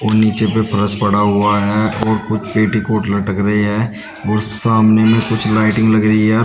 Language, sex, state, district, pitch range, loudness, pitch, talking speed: Hindi, male, Uttar Pradesh, Shamli, 105-110 Hz, -14 LUFS, 110 Hz, 185 wpm